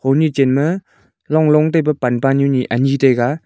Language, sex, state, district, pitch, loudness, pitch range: Wancho, male, Arunachal Pradesh, Longding, 140 Hz, -15 LUFS, 135-155 Hz